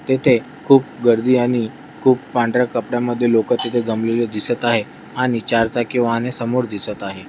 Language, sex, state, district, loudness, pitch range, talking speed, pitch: Marathi, male, Maharashtra, Dhule, -18 LUFS, 115-125 Hz, 165 wpm, 120 Hz